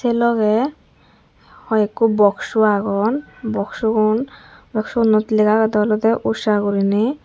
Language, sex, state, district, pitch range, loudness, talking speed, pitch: Chakma, female, Tripura, Unakoti, 210-230 Hz, -18 LUFS, 105 wpm, 215 Hz